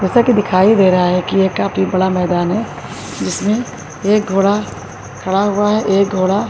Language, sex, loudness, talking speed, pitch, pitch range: Urdu, female, -15 LUFS, 205 wpm, 190 Hz, 180-205 Hz